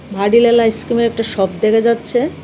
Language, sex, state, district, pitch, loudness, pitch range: Bengali, female, Tripura, West Tripura, 230 Hz, -14 LUFS, 215-235 Hz